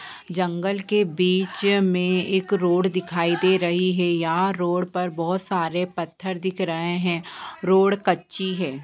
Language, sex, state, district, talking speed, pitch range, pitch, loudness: Hindi, female, Bihar, Purnia, 150 wpm, 175-190 Hz, 180 Hz, -23 LUFS